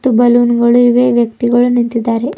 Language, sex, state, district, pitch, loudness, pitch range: Kannada, female, Karnataka, Bidar, 240 Hz, -11 LUFS, 235-245 Hz